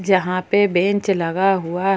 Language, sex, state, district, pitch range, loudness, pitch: Hindi, female, Jharkhand, Palamu, 185-195 Hz, -18 LUFS, 190 Hz